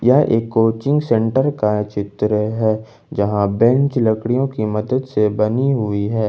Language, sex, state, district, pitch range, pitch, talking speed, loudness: Hindi, male, Jharkhand, Ranchi, 105-125 Hz, 110 Hz, 155 wpm, -18 LUFS